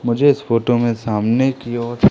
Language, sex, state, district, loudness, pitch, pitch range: Hindi, male, Madhya Pradesh, Umaria, -17 LUFS, 120 Hz, 115-125 Hz